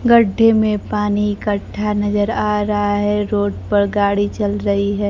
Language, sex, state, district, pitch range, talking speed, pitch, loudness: Hindi, female, Bihar, Kaimur, 205-210 Hz, 165 wpm, 205 Hz, -17 LUFS